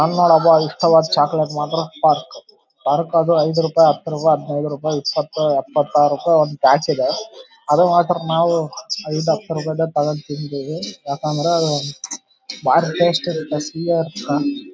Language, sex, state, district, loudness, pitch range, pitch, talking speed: Kannada, male, Karnataka, Raichur, -18 LUFS, 150-170 Hz, 160 Hz, 125 wpm